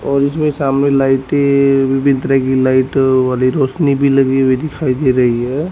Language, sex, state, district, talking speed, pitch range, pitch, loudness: Hindi, male, Haryana, Rohtak, 180 wpm, 130-140 Hz, 135 Hz, -13 LUFS